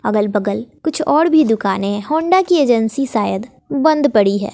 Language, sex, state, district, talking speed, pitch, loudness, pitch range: Hindi, female, Bihar, West Champaran, 170 wpm, 240 Hz, -16 LUFS, 205-310 Hz